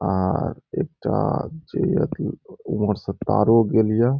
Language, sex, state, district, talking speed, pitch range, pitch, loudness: Maithili, male, Bihar, Saharsa, 145 wpm, 95-115 Hz, 105 Hz, -22 LUFS